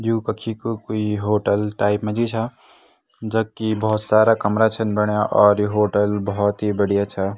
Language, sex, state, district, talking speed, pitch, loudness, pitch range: Garhwali, male, Uttarakhand, Tehri Garhwal, 185 wpm, 105 Hz, -20 LUFS, 105-110 Hz